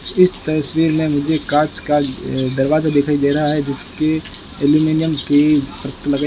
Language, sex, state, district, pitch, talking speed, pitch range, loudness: Hindi, male, Rajasthan, Bikaner, 150 Hz, 155 wpm, 145-155 Hz, -16 LUFS